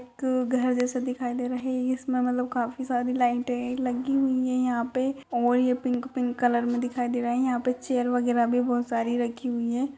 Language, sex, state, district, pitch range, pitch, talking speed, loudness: Hindi, female, Rajasthan, Churu, 245-255 Hz, 250 Hz, 220 wpm, -26 LUFS